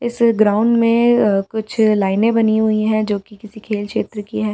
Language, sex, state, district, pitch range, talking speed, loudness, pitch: Hindi, female, Delhi, New Delhi, 210-225 Hz, 210 wpm, -16 LUFS, 215 Hz